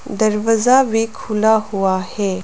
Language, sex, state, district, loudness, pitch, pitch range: Hindi, female, Arunachal Pradesh, Lower Dibang Valley, -16 LUFS, 215 Hz, 200-225 Hz